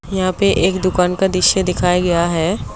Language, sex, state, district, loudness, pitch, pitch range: Hindi, female, Assam, Kamrup Metropolitan, -16 LUFS, 185 Hz, 180-190 Hz